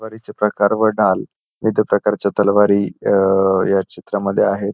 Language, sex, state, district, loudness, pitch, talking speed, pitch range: Marathi, male, Maharashtra, Pune, -17 LUFS, 100 Hz, 125 wpm, 100-105 Hz